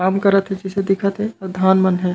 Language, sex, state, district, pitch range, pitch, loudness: Chhattisgarhi, male, Chhattisgarh, Raigarh, 190-195 Hz, 190 Hz, -18 LUFS